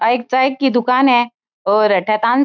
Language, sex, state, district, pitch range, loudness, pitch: Marwari, female, Rajasthan, Churu, 215-260 Hz, -15 LUFS, 240 Hz